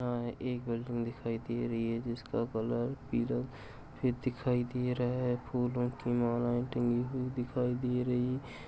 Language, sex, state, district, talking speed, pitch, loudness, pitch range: Hindi, male, Uttar Pradesh, Jalaun, 160 wpm, 120 Hz, -34 LUFS, 120-125 Hz